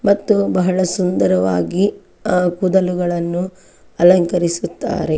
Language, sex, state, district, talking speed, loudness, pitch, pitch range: Kannada, female, Karnataka, Chamarajanagar, 70 wpm, -17 LUFS, 180 Hz, 170-185 Hz